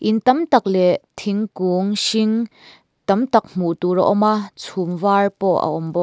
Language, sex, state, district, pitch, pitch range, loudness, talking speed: Mizo, female, Mizoram, Aizawl, 200 Hz, 180-215 Hz, -18 LUFS, 190 wpm